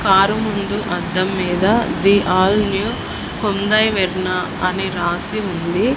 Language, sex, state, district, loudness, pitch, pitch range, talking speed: Telugu, female, Telangana, Hyderabad, -18 LUFS, 195 Hz, 185-205 Hz, 120 wpm